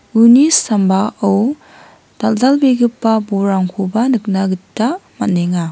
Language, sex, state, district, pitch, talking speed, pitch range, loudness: Garo, female, Meghalaya, West Garo Hills, 220 Hz, 75 wpm, 195-245 Hz, -14 LUFS